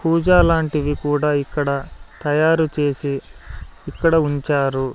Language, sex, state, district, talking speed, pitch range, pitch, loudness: Telugu, male, Andhra Pradesh, Sri Satya Sai, 85 wpm, 140-160 Hz, 150 Hz, -19 LUFS